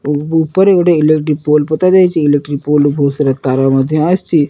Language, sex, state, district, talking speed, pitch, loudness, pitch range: Odia, male, Odisha, Nuapada, 185 wpm, 150 Hz, -12 LUFS, 145-165 Hz